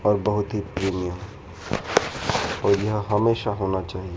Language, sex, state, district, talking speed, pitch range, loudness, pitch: Hindi, male, Madhya Pradesh, Dhar, 130 wpm, 95-105 Hz, -24 LUFS, 100 Hz